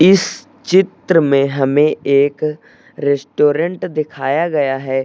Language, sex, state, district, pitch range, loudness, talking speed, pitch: Hindi, male, Uttar Pradesh, Lucknow, 140-165 Hz, -16 LUFS, 105 wpm, 150 Hz